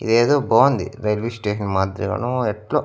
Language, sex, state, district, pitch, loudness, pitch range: Telugu, male, Andhra Pradesh, Annamaya, 110 Hz, -20 LUFS, 105-125 Hz